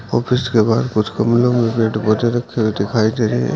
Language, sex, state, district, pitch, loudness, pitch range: Hindi, male, Uttarakhand, Uttarkashi, 115 Hz, -17 LUFS, 110-120 Hz